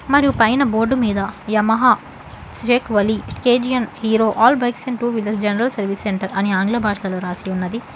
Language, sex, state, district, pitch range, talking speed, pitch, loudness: Telugu, female, Telangana, Hyderabad, 205-245 Hz, 165 wpm, 225 Hz, -18 LUFS